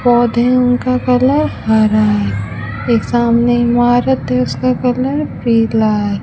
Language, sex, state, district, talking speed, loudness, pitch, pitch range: Hindi, female, Rajasthan, Bikaner, 125 wpm, -14 LUFS, 240 Hz, 210-250 Hz